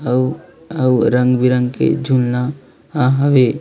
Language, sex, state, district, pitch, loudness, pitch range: Hindi, female, Chhattisgarh, Raipur, 125 Hz, -16 LUFS, 125-140 Hz